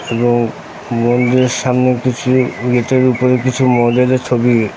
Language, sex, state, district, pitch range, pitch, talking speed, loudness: Bengali, male, West Bengal, North 24 Parganas, 120-130 Hz, 125 Hz, 125 wpm, -14 LUFS